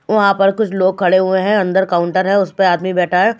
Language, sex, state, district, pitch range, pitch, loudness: Hindi, female, Bihar, West Champaran, 185-200 Hz, 190 Hz, -14 LUFS